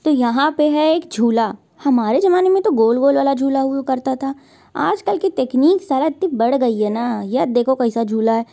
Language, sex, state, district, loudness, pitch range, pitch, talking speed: Hindi, female, Uttar Pradesh, Varanasi, -17 LUFS, 235-300 Hz, 265 Hz, 220 wpm